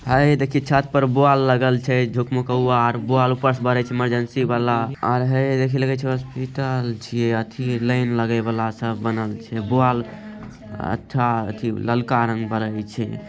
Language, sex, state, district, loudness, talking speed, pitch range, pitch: Angika, male, Bihar, Begusarai, -21 LUFS, 155 wpm, 115-130 Hz, 125 Hz